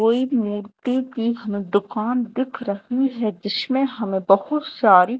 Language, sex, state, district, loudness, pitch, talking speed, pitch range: Hindi, female, Madhya Pradesh, Dhar, -21 LUFS, 230 Hz, 125 wpm, 205-255 Hz